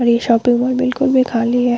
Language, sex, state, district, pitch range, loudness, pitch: Hindi, female, Bihar, Vaishali, 235-255 Hz, -15 LUFS, 245 Hz